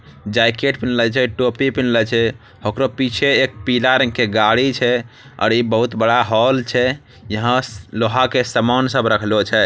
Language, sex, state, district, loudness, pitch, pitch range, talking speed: Angika, male, Bihar, Bhagalpur, -17 LUFS, 120 Hz, 115-130 Hz, 180 wpm